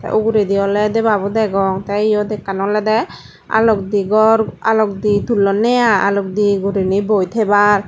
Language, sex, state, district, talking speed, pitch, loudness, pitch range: Chakma, female, Tripura, Dhalai, 145 wpm, 210 Hz, -15 LUFS, 200-220 Hz